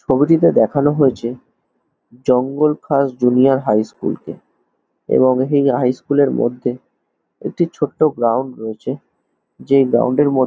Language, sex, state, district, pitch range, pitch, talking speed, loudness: Bengali, male, West Bengal, Jhargram, 125-140 Hz, 130 Hz, 120 wpm, -16 LUFS